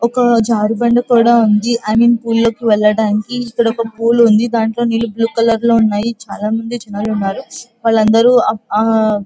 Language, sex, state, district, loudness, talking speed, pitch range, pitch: Telugu, female, Andhra Pradesh, Guntur, -13 LUFS, 150 wpm, 215-235 Hz, 230 Hz